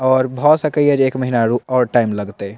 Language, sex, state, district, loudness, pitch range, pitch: Maithili, male, Bihar, Purnia, -16 LUFS, 115-135 Hz, 130 Hz